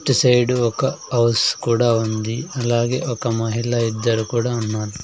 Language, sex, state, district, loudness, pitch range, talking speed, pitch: Telugu, male, Andhra Pradesh, Sri Satya Sai, -19 LUFS, 115-125 Hz, 145 wpm, 115 Hz